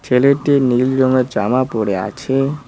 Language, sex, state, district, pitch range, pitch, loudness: Bengali, male, West Bengal, Cooch Behar, 125-135 Hz, 130 Hz, -16 LUFS